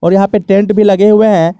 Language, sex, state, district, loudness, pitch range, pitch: Hindi, male, Jharkhand, Garhwa, -9 LUFS, 195-210 Hz, 200 Hz